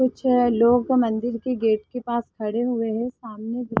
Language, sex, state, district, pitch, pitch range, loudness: Hindi, female, Chhattisgarh, Sarguja, 235 Hz, 225-245 Hz, -23 LUFS